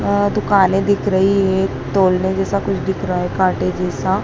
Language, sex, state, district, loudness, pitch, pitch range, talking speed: Hindi, male, Madhya Pradesh, Dhar, -17 LUFS, 190 Hz, 185-200 Hz, 210 wpm